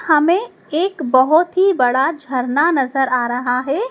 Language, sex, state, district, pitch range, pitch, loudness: Hindi, female, Madhya Pradesh, Dhar, 255-345 Hz, 285 Hz, -16 LUFS